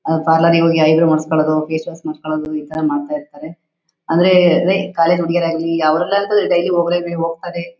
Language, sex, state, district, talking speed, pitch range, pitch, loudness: Kannada, female, Karnataka, Shimoga, 130 wpm, 155-175 Hz, 165 Hz, -16 LUFS